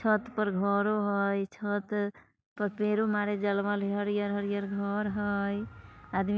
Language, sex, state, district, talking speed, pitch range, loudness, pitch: Bajjika, female, Bihar, Vaishali, 120 wpm, 200-205 Hz, -31 LUFS, 205 Hz